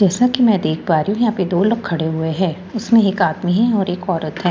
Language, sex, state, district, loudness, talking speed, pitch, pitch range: Hindi, female, Bihar, Katihar, -17 LUFS, 280 wpm, 190 Hz, 170-220 Hz